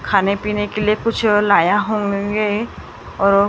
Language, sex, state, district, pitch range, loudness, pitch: Hindi, female, Maharashtra, Gondia, 200-210 Hz, -17 LUFS, 205 Hz